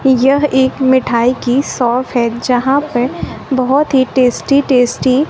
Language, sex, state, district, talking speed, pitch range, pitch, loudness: Hindi, female, Bihar, West Champaran, 145 wpm, 245-275 Hz, 260 Hz, -13 LUFS